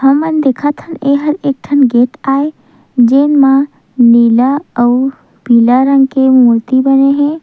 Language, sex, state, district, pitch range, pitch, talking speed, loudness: Chhattisgarhi, female, Chhattisgarh, Sukma, 250-285 Hz, 270 Hz, 145 wpm, -10 LUFS